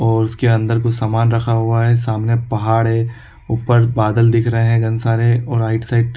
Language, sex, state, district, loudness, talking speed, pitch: Hindi, male, Chhattisgarh, Korba, -16 LUFS, 215 wpm, 115 Hz